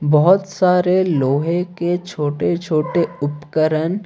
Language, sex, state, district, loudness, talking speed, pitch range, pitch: Hindi, male, Odisha, Khordha, -18 LUFS, 105 wpm, 150-180 Hz, 170 Hz